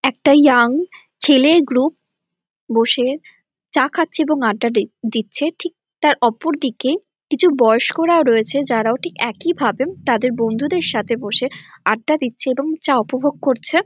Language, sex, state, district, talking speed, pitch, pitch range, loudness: Bengali, female, West Bengal, North 24 Parganas, 135 wpm, 270 Hz, 235-315 Hz, -17 LUFS